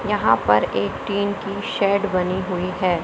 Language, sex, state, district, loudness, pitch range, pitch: Hindi, male, Madhya Pradesh, Katni, -21 LUFS, 150-200 Hz, 185 Hz